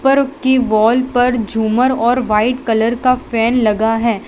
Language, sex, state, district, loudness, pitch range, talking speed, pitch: Hindi, female, Gujarat, Valsad, -14 LUFS, 225-255 Hz, 170 wpm, 235 Hz